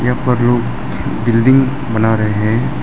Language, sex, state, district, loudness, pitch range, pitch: Hindi, male, Arunachal Pradesh, Lower Dibang Valley, -14 LUFS, 110-130 Hz, 120 Hz